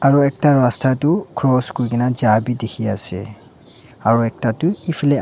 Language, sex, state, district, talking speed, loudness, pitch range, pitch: Nagamese, male, Nagaland, Dimapur, 160 wpm, -18 LUFS, 115-140 Hz, 125 Hz